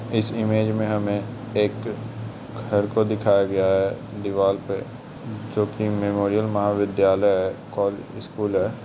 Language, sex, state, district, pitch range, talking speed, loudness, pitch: Hindi, male, Bihar, Jamui, 100-110 Hz, 135 wpm, -23 LUFS, 105 Hz